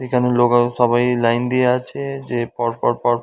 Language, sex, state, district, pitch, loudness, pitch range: Bengali, male, West Bengal, Dakshin Dinajpur, 120 Hz, -18 LUFS, 120-125 Hz